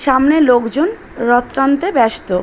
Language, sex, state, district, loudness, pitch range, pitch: Bengali, female, West Bengal, Dakshin Dinajpur, -14 LUFS, 235-300 Hz, 265 Hz